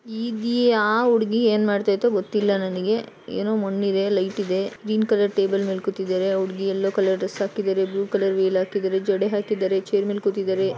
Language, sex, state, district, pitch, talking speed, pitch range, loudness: Kannada, female, Karnataka, Shimoga, 200 Hz, 190 wpm, 190-210 Hz, -22 LUFS